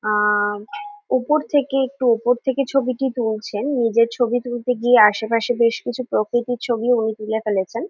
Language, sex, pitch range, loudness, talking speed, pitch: Bengali, female, 220-255 Hz, -20 LUFS, 150 wpm, 240 Hz